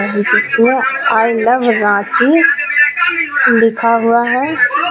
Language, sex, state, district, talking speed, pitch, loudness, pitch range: Hindi, female, Jharkhand, Ranchi, 85 wpm, 250 Hz, -12 LUFS, 230-320 Hz